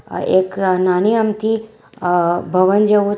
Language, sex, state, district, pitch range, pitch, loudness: Gujarati, female, Gujarat, Valsad, 185-215 Hz, 195 Hz, -16 LUFS